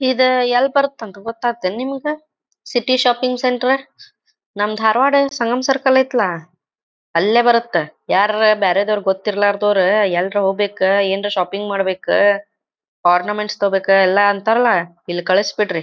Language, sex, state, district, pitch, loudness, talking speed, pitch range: Kannada, female, Karnataka, Dharwad, 210 Hz, -16 LUFS, 120 wpm, 195-255 Hz